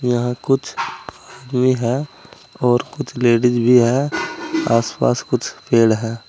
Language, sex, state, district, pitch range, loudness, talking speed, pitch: Hindi, male, Uttar Pradesh, Saharanpur, 115-130 Hz, -18 LUFS, 125 wpm, 125 Hz